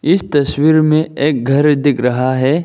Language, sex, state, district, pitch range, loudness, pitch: Hindi, male, Arunachal Pradesh, Lower Dibang Valley, 135-155 Hz, -13 LUFS, 145 Hz